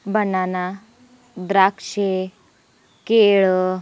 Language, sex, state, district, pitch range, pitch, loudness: Marathi, female, Maharashtra, Sindhudurg, 185-215 Hz, 195 Hz, -19 LUFS